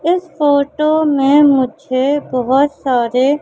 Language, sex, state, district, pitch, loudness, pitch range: Hindi, female, Madhya Pradesh, Katni, 285 Hz, -14 LUFS, 260-295 Hz